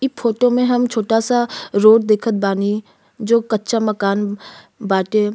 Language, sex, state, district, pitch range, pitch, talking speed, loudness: Bhojpuri, female, Uttar Pradesh, Ghazipur, 205-235 Hz, 220 Hz, 145 wpm, -17 LUFS